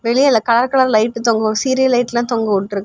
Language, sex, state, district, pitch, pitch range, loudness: Tamil, female, Tamil Nadu, Kanyakumari, 235 Hz, 220-255 Hz, -15 LUFS